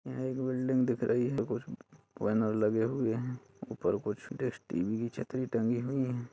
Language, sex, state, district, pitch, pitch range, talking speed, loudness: Hindi, male, Uttar Pradesh, Budaun, 125 Hz, 115-130 Hz, 180 wpm, -33 LUFS